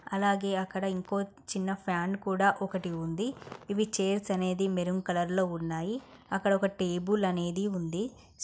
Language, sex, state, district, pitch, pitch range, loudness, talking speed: Telugu, female, Andhra Pradesh, Srikakulam, 195 Hz, 180-200 Hz, -31 LUFS, 140 wpm